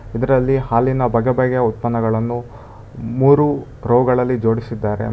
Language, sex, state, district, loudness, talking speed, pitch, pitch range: Kannada, male, Karnataka, Bangalore, -17 LUFS, 105 wpm, 120 Hz, 115-130 Hz